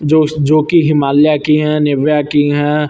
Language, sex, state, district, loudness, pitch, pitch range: Hindi, male, Uttar Pradesh, Lucknow, -12 LUFS, 150 Hz, 145-155 Hz